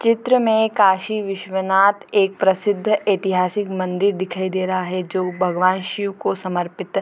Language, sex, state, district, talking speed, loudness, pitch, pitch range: Hindi, female, Bihar, Gopalganj, 155 wpm, -19 LUFS, 190 Hz, 185-205 Hz